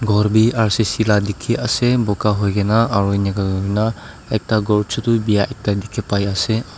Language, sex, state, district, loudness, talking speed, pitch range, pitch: Nagamese, male, Nagaland, Dimapur, -18 LUFS, 205 wpm, 100-110 Hz, 105 Hz